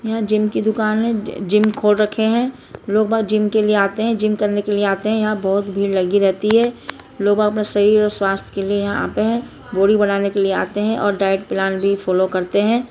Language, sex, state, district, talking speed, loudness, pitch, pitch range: Hindi, female, Chhattisgarh, Bastar, 235 wpm, -18 LUFS, 210 Hz, 200-215 Hz